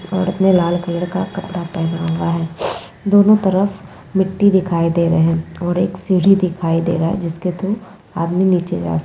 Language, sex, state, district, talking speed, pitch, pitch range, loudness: Hindi, female, Bihar, Muzaffarpur, 200 wpm, 180 Hz, 170-190 Hz, -17 LUFS